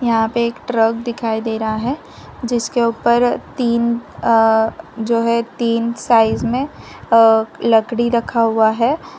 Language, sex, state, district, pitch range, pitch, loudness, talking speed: Hindi, female, Gujarat, Valsad, 225-235 Hz, 230 Hz, -17 LUFS, 145 wpm